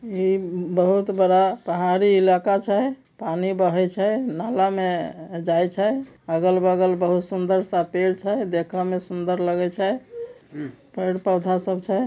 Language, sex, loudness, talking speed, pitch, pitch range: Maithili, male, -22 LUFS, 145 wpm, 185 Hz, 180-195 Hz